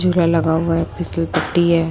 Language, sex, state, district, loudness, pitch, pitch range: Hindi, female, Chhattisgarh, Raipur, -17 LUFS, 165 Hz, 165-170 Hz